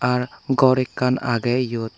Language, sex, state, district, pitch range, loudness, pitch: Chakma, male, Tripura, Dhalai, 120-130 Hz, -20 LUFS, 125 Hz